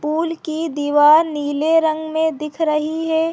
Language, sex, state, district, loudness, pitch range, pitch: Hindi, female, Uttarakhand, Tehri Garhwal, -18 LUFS, 300-320 Hz, 315 Hz